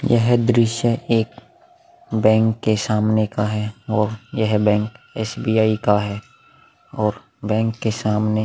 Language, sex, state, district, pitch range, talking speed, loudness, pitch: Hindi, male, Bihar, Vaishali, 105-115 Hz, 130 wpm, -20 LUFS, 110 Hz